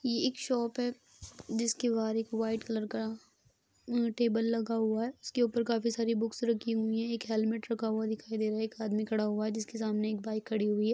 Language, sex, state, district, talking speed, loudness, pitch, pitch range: Bhojpuri, female, Bihar, Saran, 235 wpm, -33 LUFS, 225 Hz, 220-235 Hz